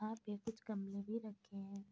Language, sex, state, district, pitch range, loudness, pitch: Hindi, female, Uttar Pradesh, Budaun, 200-220 Hz, -47 LUFS, 205 Hz